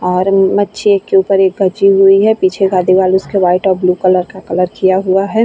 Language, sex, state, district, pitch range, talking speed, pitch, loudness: Hindi, female, Uttar Pradesh, Etah, 185-195 Hz, 255 wpm, 190 Hz, -11 LUFS